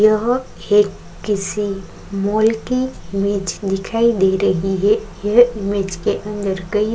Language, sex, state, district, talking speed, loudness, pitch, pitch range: Hindi, female, Uttarakhand, Tehri Garhwal, 130 wpm, -18 LUFS, 205 Hz, 195-215 Hz